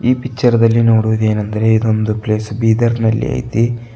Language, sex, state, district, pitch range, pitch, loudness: Kannada, male, Karnataka, Bidar, 110-120 Hz, 115 Hz, -15 LUFS